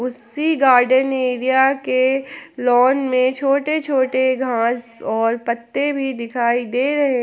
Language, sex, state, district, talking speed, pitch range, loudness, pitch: Hindi, female, Jharkhand, Palamu, 125 wpm, 245-270 Hz, -18 LUFS, 260 Hz